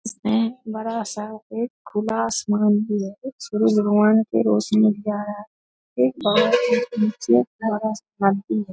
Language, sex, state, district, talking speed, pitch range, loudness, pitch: Hindi, female, Bihar, Darbhanga, 105 wpm, 205-220 Hz, -21 LUFS, 215 Hz